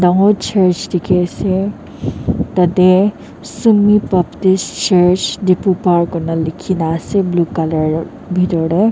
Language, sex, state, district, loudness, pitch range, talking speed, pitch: Nagamese, female, Nagaland, Dimapur, -14 LUFS, 170-195 Hz, 115 wpm, 180 Hz